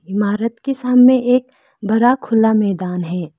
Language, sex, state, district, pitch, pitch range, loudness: Hindi, female, Arunachal Pradesh, Lower Dibang Valley, 225 Hz, 200-250 Hz, -16 LUFS